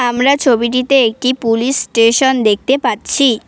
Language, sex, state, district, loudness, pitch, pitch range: Bengali, female, West Bengal, Cooch Behar, -13 LUFS, 250 Hz, 230-265 Hz